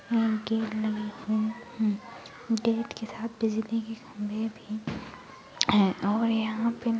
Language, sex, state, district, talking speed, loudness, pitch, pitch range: Hindi, female, Uttarakhand, Uttarkashi, 105 wpm, -29 LUFS, 220 Hz, 215-230 Hz